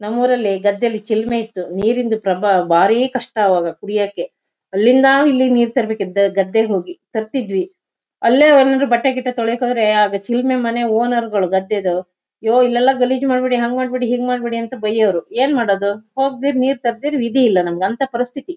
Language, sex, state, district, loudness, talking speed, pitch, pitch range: Kannada, female, Karnataka, Shimoga, -16 LUFS, 155 wpm, 235 Hz, 205-255 Hz